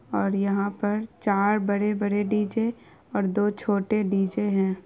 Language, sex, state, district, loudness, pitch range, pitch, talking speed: Hindi, female, Bihar, Araria, -25 LUFS, 200-210 Hz, 205 Hz, 135 wpm